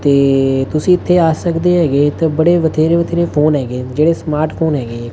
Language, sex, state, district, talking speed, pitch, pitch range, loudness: Punjabi, male, Punjab, Fazilka, 185 wpm, 155 Hz, 140-170 Hz, -14 LUFS